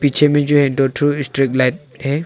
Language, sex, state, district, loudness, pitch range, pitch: Hindi, male, Arunachal Pradesh, Longding, -15 LUFS, 135-145 Hz, 145 Hz